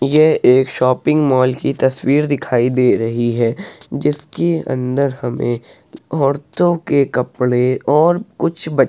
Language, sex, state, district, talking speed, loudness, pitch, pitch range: Hindi, male, Uttar Pradesh, Hamirpur, 130 wpm, -16 LUFS, 135 Hz, 125-150 Hz